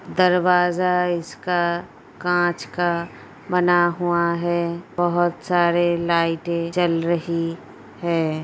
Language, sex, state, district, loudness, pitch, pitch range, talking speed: Hindi, female, Uttar Pradesh, Gorakhpur, -21 LUFS, 175 Hz, 170-175 Hz, 90 wpm